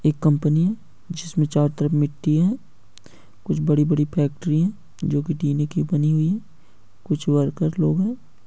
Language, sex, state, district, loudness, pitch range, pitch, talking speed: Hindi, male, Bihar, Samastipur, -22 LUFS, 150-165 Hz, 155 Hz, 155 wpm